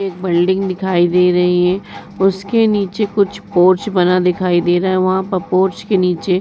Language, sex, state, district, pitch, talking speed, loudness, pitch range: Hindi, female, Uttar Pradesh, Varanasi, 185 Hz, 180 wpm, -15 LUFS, 180-195 Hz